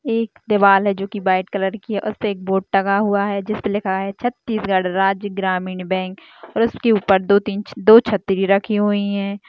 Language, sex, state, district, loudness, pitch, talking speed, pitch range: Hindi, female, Chhattisgarh, Jashpur, -18 LUFS, 200 Hz, 210 wpm, 195-210 Hz